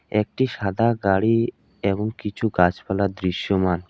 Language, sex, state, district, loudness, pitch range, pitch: Bengali, male, West Bengal, Alipurduar, -22 LUFS, 95-110 Hz, 100 Hz